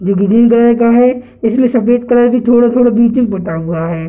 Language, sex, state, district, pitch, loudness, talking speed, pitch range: Hindi, male, Bihar, Gaya, 235 Hz, -11 LUFS, 220 wpm, 200-245 Hz